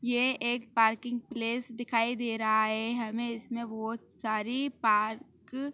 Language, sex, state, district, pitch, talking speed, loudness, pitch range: Hindi, female, Uttar Pradesh, Gorakhpur, 235 Hz, 145 wpm, -30 LUFS, 225-245 Hz